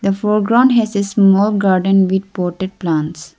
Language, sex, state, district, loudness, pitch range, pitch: English, female, Arunachal Pradesh, Lower Dibang Valley, -15 LUFS, 185-210 Hz, 195 Hz